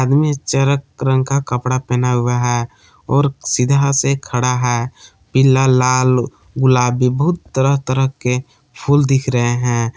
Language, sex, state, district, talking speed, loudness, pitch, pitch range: Hindi, male, Jharkhand, Palamu, 130 wpm, -16 LUFS, 130 Hz, 125-140 Hz